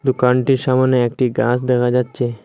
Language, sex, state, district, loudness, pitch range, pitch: Bengali, male, Assam, Hailakandi, -17 LUFS, 120-130 Hz, 125 Hz